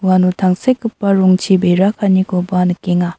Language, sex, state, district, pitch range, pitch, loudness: Garo, female, Meghalaya, South Garo Hills, 180-195 Hz, 185 Hz, -14 LUFS